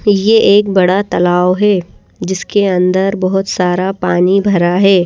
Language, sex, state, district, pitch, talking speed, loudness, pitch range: Hindi, female, Madhya Pradesh, Bhopal, 190 Hz, 155 wpm, -12 LUFS, 180-200 Hz